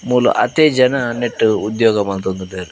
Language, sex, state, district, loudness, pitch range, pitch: Tulu, male, Karnataka, Dakshina Kannada, -16 LUFS, 100-125 Hz, 115 Hz